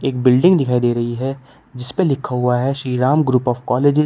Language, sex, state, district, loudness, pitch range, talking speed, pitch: Hindi, male, Uttar Pradesh, Shamli, -17 LUFS, 125-135 Hz, 235 wpm, 130 Hz